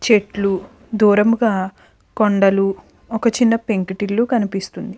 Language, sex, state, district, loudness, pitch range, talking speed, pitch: Telugu, female, Andhra Pradesh, Anantapur, -18 LUFS, 195-230 Hz, 70 wpm, 205 Hz